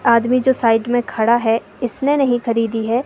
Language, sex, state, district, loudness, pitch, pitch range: Hindi, female, Himachal Pradesh, Shimla, -17 LUFS, 235 Hz, 230-245 Hz